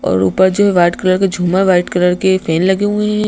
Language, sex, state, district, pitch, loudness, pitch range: Hindi, female, Madhya Pradesh, Bhopal, 185 Hz, -13 LUFS, 180-195 Hz